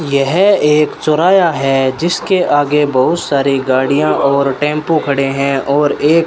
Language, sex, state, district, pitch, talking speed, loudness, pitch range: Hindi, male, Rajasthan, Bikaner, 145 Hz, 155 wpm, -13 LUFS, 140-160 Hz